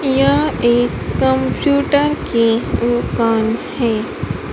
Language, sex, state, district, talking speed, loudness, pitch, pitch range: Hindi, female, Madhya Pradesh, Dhar, 80 wpm, -16 LUFS, 240 Hz, 225-280 Hz